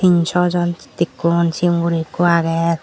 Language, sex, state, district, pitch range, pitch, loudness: Chakma, female, Tripura, Dhalai, 165-175 Hz, 170 Hz, -17 LUFS